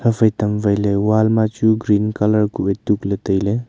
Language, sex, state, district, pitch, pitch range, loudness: Wancho, male, Arunachal Pradesh, Longding, 105 Hz, 100-110 Hz, -17 LUFS